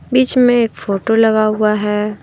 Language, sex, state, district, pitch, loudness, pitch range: Hindi, female, Jharkhand, Deoghar, 215 Hz, -14 LUFS, 210-240 Hz